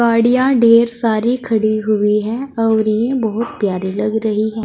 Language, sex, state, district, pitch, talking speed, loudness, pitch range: Hindi, female, Uttar Pradesh, Saharanpur, 220 Hz, 155 wpm, -15 LUFS, 215-235 Hz